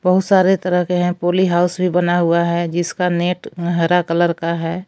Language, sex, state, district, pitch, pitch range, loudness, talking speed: Hindi, female, Jharkhand, Palamu, 175 Hz, 170-180 Hz, -17 LUFS, 210 wpm